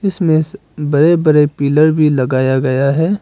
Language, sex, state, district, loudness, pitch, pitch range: Hindi, male, Arunachal Pradesh, Papum Pare, -13 LUFS, 150 Hz, 140-160 Hz